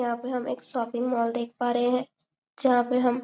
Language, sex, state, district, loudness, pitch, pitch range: Hindi, female, Chhattisgarh, Bastar, -26 LUFS, 245 Hz, 235-250 Hz